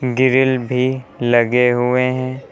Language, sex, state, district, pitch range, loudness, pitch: Hindi, male, Uttar Pradesh, Lucknow, 125-130 Hz, -16 LUFS, 125 Hz